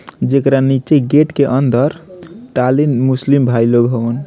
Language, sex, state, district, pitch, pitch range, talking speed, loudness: Bhojpuri, male, Bihar, Muzaffarpur, 135 Hz, 125-145 Hz, 140 wpm, -13 LUFS